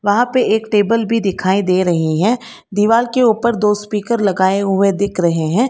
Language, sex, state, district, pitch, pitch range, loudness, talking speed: Hindi, female, Karnataka, Bangalore, 205 Hz, 190-230 Hz, -15 LUFS, 200 wpm